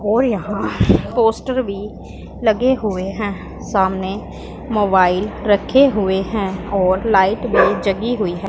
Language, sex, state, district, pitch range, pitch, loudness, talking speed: Hindi, female, Punjab, Pathankot, 190-225 Hz, 205 Hz, -17 LUFS, 125 wpm